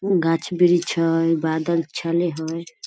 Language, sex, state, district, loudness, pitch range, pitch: Maithili, female, Bihar, Samastipur, -21 LUFS, 165-175 Hz, 165 Hz